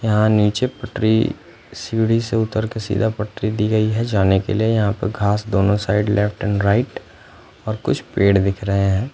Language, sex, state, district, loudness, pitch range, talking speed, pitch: Hindi, male, Punjab, Fazilka, -19 LUFS, 100-110 Hz, 190 wpm, 105 Hz